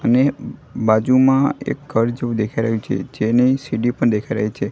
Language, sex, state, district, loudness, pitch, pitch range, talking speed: Gujarati, male, Gujarat, Gandhinagar, -18 LUFS, 120 Hz, 110-130 Hz, 180 wpm